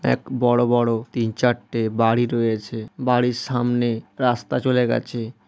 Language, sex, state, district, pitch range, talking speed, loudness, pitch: Bengali, male, West Bengal, Malda, 115-125 Hz, 130 wpm, -21 LUFS, 120 Hz